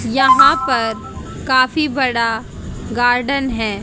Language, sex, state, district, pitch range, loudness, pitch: Hindi, female, Haryana, Jhajjar, 230-265 Hz, -15 LUFS, 260 Hz